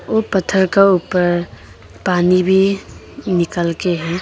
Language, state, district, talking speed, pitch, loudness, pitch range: Hindi, Arunachal Pradesh, Lower Dibang Valley, 130 wpm, 180 Hz, -16 LUFS, 170-190 Hz